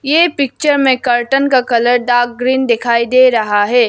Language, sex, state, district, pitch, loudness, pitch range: Hindi, female, Arunachal Pradesh, Lower Dibang Valley, 250 Hz, -12 LUFS, 240-270 Hz